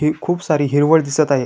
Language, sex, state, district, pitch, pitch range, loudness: Marathi, male, Maharashtra, Chandrapur, 150 Hz, 145-160 Hz, -16 LUFS